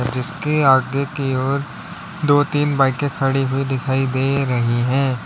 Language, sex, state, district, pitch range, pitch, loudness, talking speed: Hindi, male, Uttar Pradesh, Lalitpur, 130-145 Hz, 135 Hz, -19 LUFS, 150 wpm